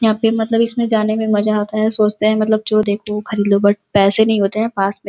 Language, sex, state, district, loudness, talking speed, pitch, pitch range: Hindi, female, Uttar Pradesh, Gorakhpur, -15 LUFS, 280 wpm, 215 Hz, 205-220 Hz